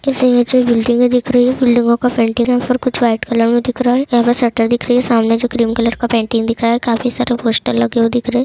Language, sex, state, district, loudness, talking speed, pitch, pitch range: Hindi, female, Uttar Pradesh, Etah, -14 LUFS, 265 wpm, 240 Hz, 230-245 Hz